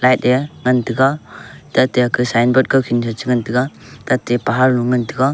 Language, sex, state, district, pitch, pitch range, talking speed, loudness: Wancho, male, Arunachal Pradesh, Longding, 125 Hz, 120-130 Hz, 190 wpm, -16 LUFS